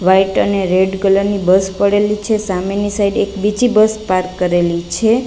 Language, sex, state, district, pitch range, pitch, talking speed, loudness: Gujarati, female, Gujarat, Gandhinagar, 185-210 Hz, 200 Hz, 180 wpm, -15 LUFS